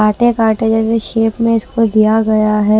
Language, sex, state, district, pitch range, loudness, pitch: Hindi, female, Himachal Pradesh, Shimla, 215-225 Hz, -13 LUFS, 225 Hz